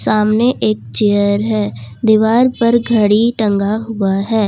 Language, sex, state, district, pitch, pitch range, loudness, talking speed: Hindi, female, Jharkhand, Ranchi, 215 Hz, 200-225 Hz, -14 LUFS, 135 wpm